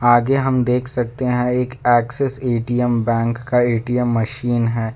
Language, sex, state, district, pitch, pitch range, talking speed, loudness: Hindi, male, Karnataka, Bangalore, 120 Hz, 120-125 Hz, 155 wpm, -18 LUFS